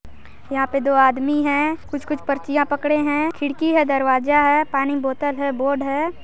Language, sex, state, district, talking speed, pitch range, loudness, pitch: Hindi, female, Chhattisgarh, Sarguja, 190 wpm, 275-295 Hz, -20 LUFS, 285 Hz